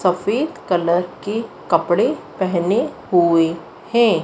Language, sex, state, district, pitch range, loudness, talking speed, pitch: Hindi, female, Madhya Pradesh, Dhar, 170-215 Hz, -19 LUFS, 100 wpm, 180 Hz